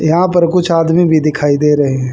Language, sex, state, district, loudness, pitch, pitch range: Hindi, female, Haryana, Charkhi Dadri, -12 LUFS, 160 Hz, 145-170 Hz